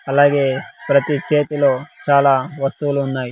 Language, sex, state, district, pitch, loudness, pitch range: Telugu, male, Andhra Pradesh, Sri Satya Sai, 140 Hz, -17 LUFS, 135-145 Hz